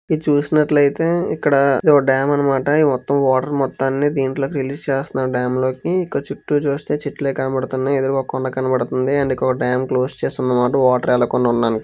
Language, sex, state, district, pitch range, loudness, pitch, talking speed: Telugu, male, Andhra Pradesh, Visakhapatnam, 130-145 Hz, -18 LUFS, 135 Hz, 165 wpm